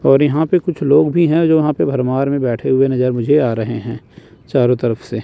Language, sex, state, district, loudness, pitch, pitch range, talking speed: Hindi, male, Chandigarh, Chandigarh, -15 LUFS, 135 Hz, 120-150 Hz, 250 wpm